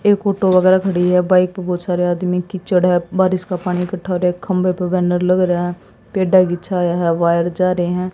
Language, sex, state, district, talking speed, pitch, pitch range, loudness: Hindi, female, Haryana, Jhajjar, 235 wpm, 180 Hz, 180-185 Hz, -17 LUFS